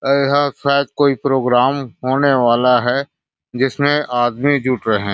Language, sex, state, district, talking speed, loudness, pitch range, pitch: Hindi, male, Chhattisgarh, Raigarh, 140 wpm, -16 LUFS, 125-140 Hz, 135 Hz